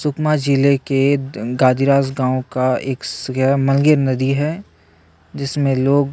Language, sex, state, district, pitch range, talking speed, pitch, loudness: Hindi, male, Chhattisgarh, Sukma, 130-140 Hz, 145 wpm, 135 Hz, -17 LUFS